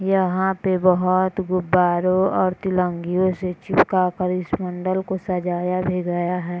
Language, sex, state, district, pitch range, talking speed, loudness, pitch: Hindi, female, Bihar, Gopalganj, 180-185 Hz, 145 wpm, -21 LUFS, 185 Hz